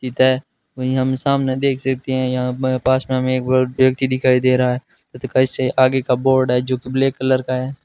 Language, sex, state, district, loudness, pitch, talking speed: Hindi, male, Rajasthan, Bikaner, -18 LUFS, 130 Hz, 215 wpm